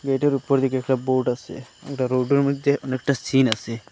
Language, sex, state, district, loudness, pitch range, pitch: Bengali, male, Assam, Hailakandi, -22 LUFS, 130-140 Hz, 135 Hz